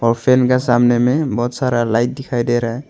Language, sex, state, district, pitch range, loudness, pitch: Hindi, male, Arunachal Pradesh, Longding, 120-130 Hz, -16 LUFS, 120 Hz